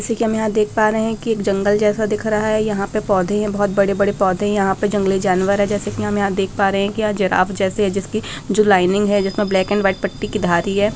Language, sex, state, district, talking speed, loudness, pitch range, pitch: Hindi, female, Bihar, Araria, 285 wpm, -18 LUFS, 195-215 Hz, 205 Hz